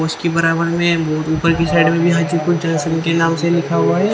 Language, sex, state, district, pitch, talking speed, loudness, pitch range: Hindi, female, Haryana, Charkhi Dadri, 165 Hz, 160 wpm, -16 LUFS, 160-170 Hz